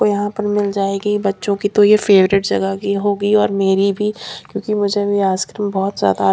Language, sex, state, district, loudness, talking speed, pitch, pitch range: Hindi, female, Punjab, Kapurthala, -16 LUFS, 210 wpm, 205 Hz, 195-205 Hz